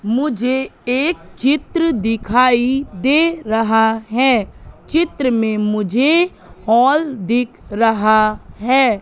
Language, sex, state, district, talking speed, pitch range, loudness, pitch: Hindi, female, Madhya Pradesh, Katni, 95 wpm, 220-275 Hz, -16 LUFS, 245 Hz